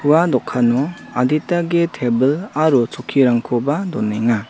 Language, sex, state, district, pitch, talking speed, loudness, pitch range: Garo, male, Meghalaya, South Garo Hills, 130 Hz, 105 wpm, -18 LUFS, 120-160 Hz